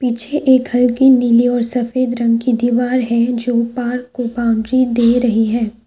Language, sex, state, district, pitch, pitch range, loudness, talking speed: Hindi, female, Assam, Kamrup Metropolitan, 245 Hz, 235-250 Hz, -15 LUFS, 185 wpm